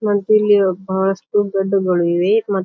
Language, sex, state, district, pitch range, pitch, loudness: Kannada, female, Karnataka, Bijapur, 190-205 Hz, 195 Hz, -16 LUFS